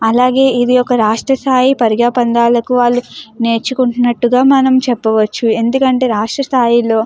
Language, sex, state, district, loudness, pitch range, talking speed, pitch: Telugu, female, Andhra Pradesh, Guntur, -12 LUFS, 230-255 Hz, 125 wpm, 245 Hz